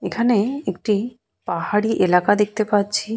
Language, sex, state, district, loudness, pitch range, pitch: Bengali, female, West Bengal, Purulia, -20 LUFS, 200-225 Hz, 210 Hz